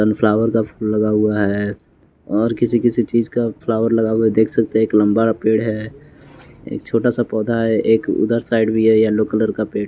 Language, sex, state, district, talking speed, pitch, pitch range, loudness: Hindi, male, Bihar, West Champaran, 230 wpm, 110 Hz, 110-115 Hz, -17 LUFS